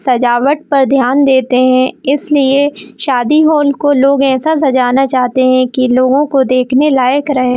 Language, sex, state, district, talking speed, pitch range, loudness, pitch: Hindi, female, Jharkhand, Jamtara, 160 wpm, 255-285 Hz, -11 LUFS, 270 Hz